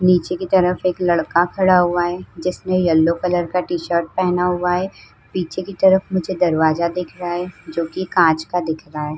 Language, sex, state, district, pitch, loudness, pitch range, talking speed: Hindi, female, Uttar Pradesh, Muzaffarnagar, 180 Hz, -19 LUFS, 170-185 Hz, 195 wpm